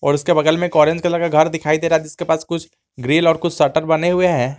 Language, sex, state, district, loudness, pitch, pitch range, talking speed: Hindi, male, Jharkhand, Garhwa, -17 LUFS, 160 Hz, 155-170 Hz, 285 wpm